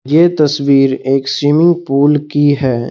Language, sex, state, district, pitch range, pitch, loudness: Hindi, male, Assam, Kamrup Metropolitan, 135-150 Hz, 145 Hz, -12 LUFS